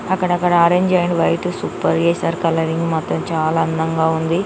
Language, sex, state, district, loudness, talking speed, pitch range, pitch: Telugu, female, Telangana, Nalgonda, -17 LUFS, 150 wpm, 160-175 Hz, 165 Hz